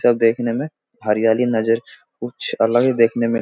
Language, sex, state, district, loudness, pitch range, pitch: Hindi, male, Bihar, Supaul, -18 LUFS, 115-120 Hz, 115 Hz